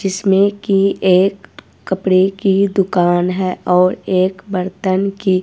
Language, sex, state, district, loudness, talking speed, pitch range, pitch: Hindi, female, Himachal Pradesh, Shimla, -15 LUFS, 120 wpm, 185-195 Hz, 190 Hz